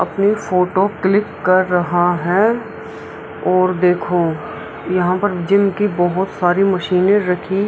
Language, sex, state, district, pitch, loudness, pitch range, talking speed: Hindi, female, Bihar, Araria, 185 Hz, -16 LUFS, 180-200 Hz, 135 wpm